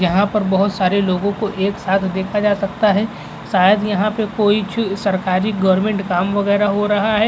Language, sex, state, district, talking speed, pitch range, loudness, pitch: Hindi, male, Uttar Pradesh, Jalaun, 200 wpm, 195-210 Hz, -17 LUFS, 200 Hz